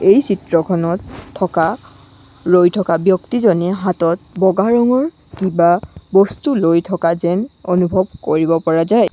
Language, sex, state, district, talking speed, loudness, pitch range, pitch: Assamese, female, Assam, Sonitpur, 120 wpm, -16 LUFS, 170-200 Hz, 185 Hz